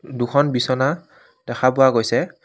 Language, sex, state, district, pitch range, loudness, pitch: Assamese, male, Assam, Kamrup Metropolitan, 120-135 Hz, -18 LUFS, 130 Hz